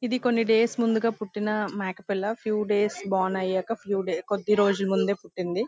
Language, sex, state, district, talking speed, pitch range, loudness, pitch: Telugu, female, Andhra Pradesh, Visakhapatnam, 180 wpm, 195-225 Hz, -26 LUFS, 210 Hz